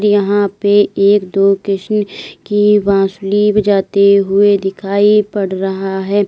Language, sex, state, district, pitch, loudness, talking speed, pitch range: Hindi, female, Uttar Pradesh, Lalitpur, 200 Hz, -13 LUFS, 125 wpm, 195-205 Hz